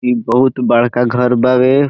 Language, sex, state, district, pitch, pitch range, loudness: Bhojpuri, male, Bihar, Saran, 125 Hz, 120-125 Hz, -13 LUFS